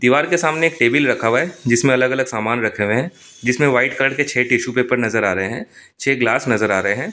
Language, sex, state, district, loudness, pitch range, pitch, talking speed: Hindi, male, Delhi, New Delhi, -17 LUFS, 120-135 Hz, 125 Hz, 295 wpm